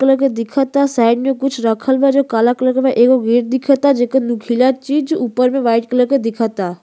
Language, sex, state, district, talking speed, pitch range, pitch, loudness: Bhojpuri, female, Uttar Pradesh, Gorakhpur, 220 wpm, 235-270 Hz, 255 Hz, -15 LUFS